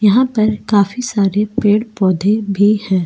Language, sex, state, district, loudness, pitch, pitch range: Hindi, female, Goa, North and South Goa, -15 LUFS, 210 Hz, 200-215 Hz